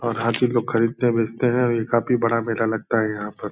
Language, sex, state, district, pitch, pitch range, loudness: Hindi, male, Bihar, Purnia, 115 Hz, 115-120 Hz, -21 LUFS